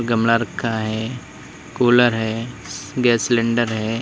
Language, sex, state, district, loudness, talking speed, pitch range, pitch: Hindi, male, Uttar Pradesh, Lalitpur, -19 LUFS, 120 wpm, 110-120 Hz, 115 Hz